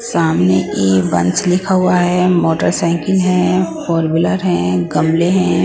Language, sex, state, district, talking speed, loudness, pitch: Hindi, female, Punjab, Pathankot, 85 wpm, -14 LUFS, 165 Hz